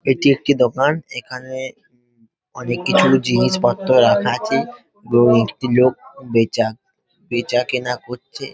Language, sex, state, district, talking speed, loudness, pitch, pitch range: Bengali, male, West Bengal, Jhargram, 125 wpm, -17 LUFS, 125 Hz, 120-135 Hz